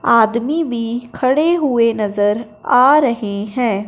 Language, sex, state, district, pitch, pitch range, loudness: Hindi, male, Punjab, Fazilka, 235 Hz, 210-260 Hz, -16 LUFS